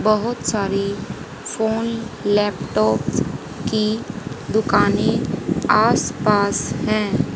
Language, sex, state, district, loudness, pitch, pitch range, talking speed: Hindi, female, Haryana, Charkhi Dadri, -20 LUFS, 210 Hz, 200-220 Hz, 65 wpm